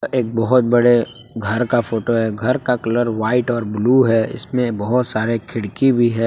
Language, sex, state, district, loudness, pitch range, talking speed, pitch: Hindi, male, Jharkhand, Palamu, -18 LUFS, 115-125 Hz, 190 wpm, 120 Hz